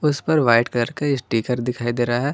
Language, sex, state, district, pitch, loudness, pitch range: Hindi, male, Jharkhand, Ranchi, 125 Hz, -20 LUFS, 120-145 Hz